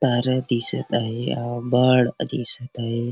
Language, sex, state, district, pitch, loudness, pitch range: Marathi, male, Maharashtra, Chandrapur, 120 Hz, -22 LUFS, 120-125 Hz